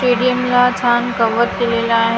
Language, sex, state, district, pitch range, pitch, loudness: Marathi, female, Maharashtra, Gondia, 230-250 Hz, 240 Hz, -15 LUFS